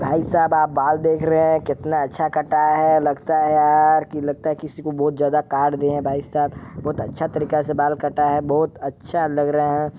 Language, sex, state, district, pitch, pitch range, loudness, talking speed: Hindi, male, Chhattisgarh, Balrampur, 150 Hz, 145-155 Hz, -20 LUFS, 215 wpm